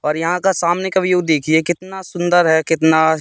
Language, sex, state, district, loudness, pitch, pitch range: Hindi, male, Madhya Pradesh, Katni, -16 LUFS, 175 Hz, 160-180 Hz